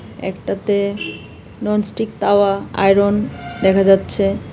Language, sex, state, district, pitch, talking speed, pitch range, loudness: Bengali, female, Tripura, West Tripura, 200 Hz, 95 wpm, 195-205 Hz, -17 LUFS